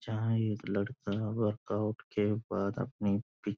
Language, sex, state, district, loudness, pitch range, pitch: Hindi, male, Uttarakhand, Uttarkashi, -34 LUFS, 100-110 Hz, 105 Hz